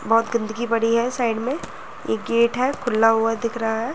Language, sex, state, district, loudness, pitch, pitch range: Hindi, female, Uttar Pradesh, Jyotiba Phule Nagar, -21 LUFS, 230 Hz, 225-235 Hz